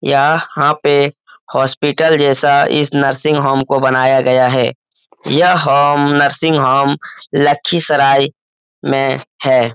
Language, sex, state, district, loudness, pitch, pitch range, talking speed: Hindi, male, Bihar, Lakhisarai, -13 LUFS, 140 Hz, 135-145 Hz, 110 wpm